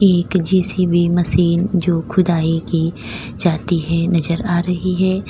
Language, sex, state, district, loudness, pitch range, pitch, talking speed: Hindi, female, Uttar Pradesh, Lalitpur, -17 LUFS, 170-185 Hz, 175 Hz, 135 wpm